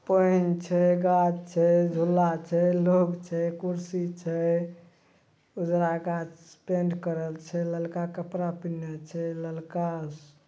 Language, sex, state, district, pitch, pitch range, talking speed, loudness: Maithili, male, Bihar, Madhepura, 170 Hz, 165-175 Hz, 120 wpm, -27 LUFS